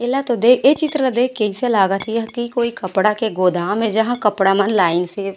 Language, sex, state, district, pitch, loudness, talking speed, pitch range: Chhattisgarhi, female, Chhattisgarh, Raigarh, 220 Hz, -17 LUFS, 255 wpm, 195-245 Hz